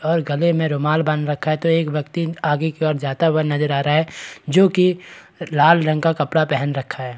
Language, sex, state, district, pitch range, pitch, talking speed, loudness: Hindi, male, Bihar, Kishanganj, 145-165 Hz, 155 Hz, 235 wpm, -19 LUFS